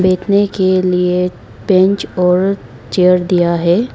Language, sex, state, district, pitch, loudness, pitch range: Hindi, female, Arunachal Pradesh, Lower Dibang Valley, 185 Hz, -13 LUFS, 180-190 Hz